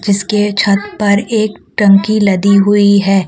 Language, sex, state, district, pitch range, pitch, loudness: Hindi, female, Jharkhand, Deoghar, 200-210 Hz, 200 Hz, -11 LUFS